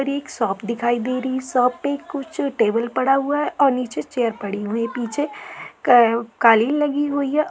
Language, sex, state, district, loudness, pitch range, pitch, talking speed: Hindi, female, Uttar Pradesh, Etah, -20 LUFS, 230-285 Hz, 255 Hz, 215 wpm